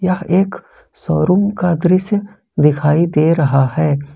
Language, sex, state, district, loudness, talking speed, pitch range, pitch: Hindi, male, Jharkhand, Ranchi, -15 LUFS, 130 wpm, 150-185 Hz, 170 Hz